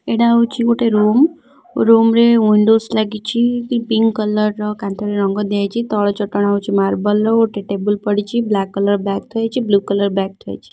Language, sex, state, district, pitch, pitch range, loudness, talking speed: Odia, female, Odisha, Khordha, 210 Hz, 200-230 Hz, -16 LUFS, 175 wpm